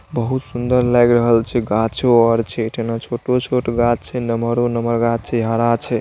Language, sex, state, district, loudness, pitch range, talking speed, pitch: Maithili, male, Bihar, Saharsa, -17 LUFS, 115-120 Hz, 190 wpm, 120 Hz